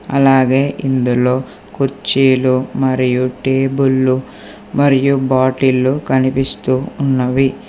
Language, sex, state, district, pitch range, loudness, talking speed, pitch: Telugu, male, Telangana, Hyderabad, 130-135 Hz, -15 LUFS, 70 wpm, 130 Hz